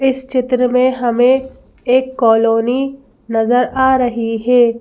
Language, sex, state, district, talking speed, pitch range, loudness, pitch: Hindi, female, Madhya Pradesh, Bhopal, 125 wpm, 235-260 Hz, -14 LUFS, 250 Hz